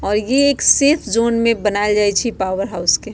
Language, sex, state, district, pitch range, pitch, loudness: Bajjika, female, Bihar, Vaishali, 205-235 Hz, 215 Hz, -15 LUFS